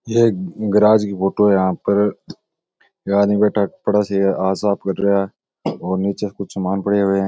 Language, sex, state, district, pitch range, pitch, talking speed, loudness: Rajasthani, male, Rajasthan, Nagaur, 95-105 Hz, 100 Hz, 215 wpm, -18 LUFS